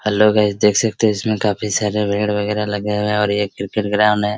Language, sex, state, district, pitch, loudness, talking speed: Hindi, male, Bihar, Araria, 105 Hz, -17 LUFS, 245 wpm